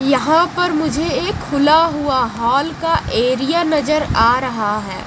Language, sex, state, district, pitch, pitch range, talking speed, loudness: Hindi, female, Odisha, Malkangiri, 290 Hz, 255-320 Hz, 155 wpm, -16 LUFS